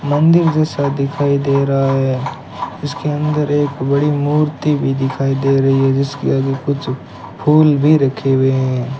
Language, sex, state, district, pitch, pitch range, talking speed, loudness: Hindi, male, Rajasthan, Bikaner, 140 Hz, 135-145 Hz, 160 wpm, -15 LUFS